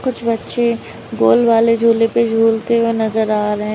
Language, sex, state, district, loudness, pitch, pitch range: Hindi, female, Uttar Pradesh, Lalitpur, -15 LUFS, 230 Hz, 220-235 Hz